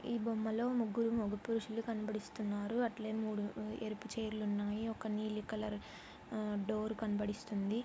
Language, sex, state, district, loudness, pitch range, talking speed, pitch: Telugu, female, Andhra Pradesh, Anantapur, -39 LUFS, 210-225 Hz, 140 wpm, 215 Hz